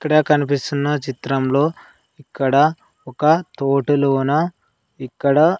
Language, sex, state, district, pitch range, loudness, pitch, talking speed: Telugu, male, Andhra Pradesh, Sri Satya Sai, 135-155 Hz, -18 LUFS, 145 Hz, 75 wpm